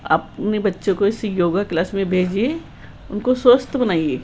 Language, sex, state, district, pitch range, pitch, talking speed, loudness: Hindi, female, Rajasthan, Jaipur, 190-245 Hz, 205 Hz, 155 wpm, -19 LUFS